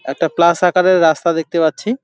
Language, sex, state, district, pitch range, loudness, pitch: Bengali, male, West Bengal, Jalpaiguri, 160-180 Hz, -14 LUFS, 170 Hz